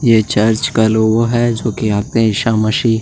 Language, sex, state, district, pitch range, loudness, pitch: Hindi, male, Chhattisgarh, Sukma, 110-115 Hz, -14 LUFS, 110 Hz